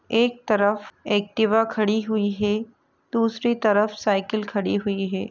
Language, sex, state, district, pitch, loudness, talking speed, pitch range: Hindi, female, Uttar Pradesh, Etah, 215 Hz, -23 LUFS, 145 wpm, 205-225 Hz